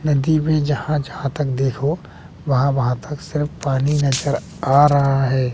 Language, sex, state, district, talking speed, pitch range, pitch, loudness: Hindi, male, Bihar, West Champaran, 175 wpm, 135-150 Hz, 140 Hz, -19 LUFS